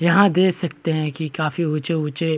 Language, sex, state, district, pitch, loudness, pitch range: Hindi, male, Bihar, Kishanganj, 160 Hz, -21 LUFS, 155-170 Hz